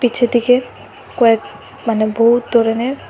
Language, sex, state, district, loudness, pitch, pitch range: Bengali, female, Assam, Hailakandi, -15 LUFS, 235 Hz, 225-245 Hz